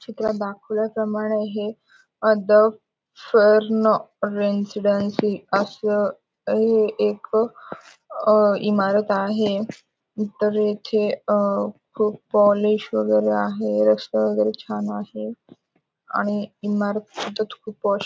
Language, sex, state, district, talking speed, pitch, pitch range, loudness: Marathi, female, Maharashtra, Aurangabad, 95 wpm, 210 Hz, 200-215 Hz, -21 LUFS